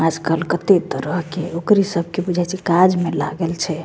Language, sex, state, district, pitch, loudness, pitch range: Maithili, female, Bihar, Begusarai, 170 Hz, -19 LUFS, 165-185 Hz